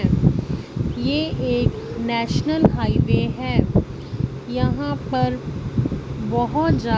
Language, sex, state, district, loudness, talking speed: Hindi, female, Punjab, Fazilka, -22 LUFS, 75 wpm